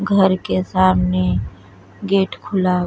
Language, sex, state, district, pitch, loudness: Bhojpuri, female, Uttar Pradesh, Deoria, 185 Hz, -18 LUFS